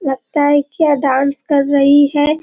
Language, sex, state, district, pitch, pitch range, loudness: Hindi, female, Bihar, Kishanganj, 285 Hz, 280-290 Hz, -13 LUFS